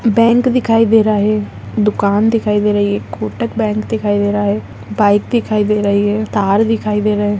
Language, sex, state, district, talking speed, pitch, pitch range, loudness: Hindi, female, Andhra Pradesh, Anantapur, 145 wpm, 210 Hz, 205-225 Hz, -14 LUFS